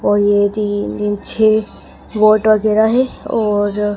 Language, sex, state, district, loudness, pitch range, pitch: Hindi, female, Madhya Pradesh, Dhar, -15 LUFS, 205-215 Hz, 210 Hz